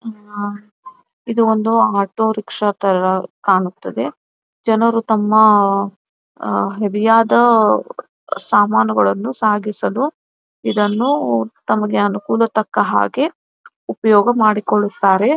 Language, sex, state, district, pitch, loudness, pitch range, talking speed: Kannada, female, Karnataka, Belgaum, 210 Hz, -16 LUFS, 190-225 Hz, 80 wpm